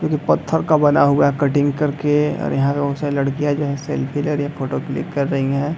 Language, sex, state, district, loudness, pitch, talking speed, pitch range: Hindi, male, Bihar, Madhepura, -19 LUFS, 145 Hz, 280 wpm, 140-150 Hz